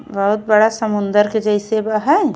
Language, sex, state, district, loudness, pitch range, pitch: Bhojpuri, female, Uttar Pradesh, Ghazipur, -16 LUFS, 210-220 Hz, 215 Hz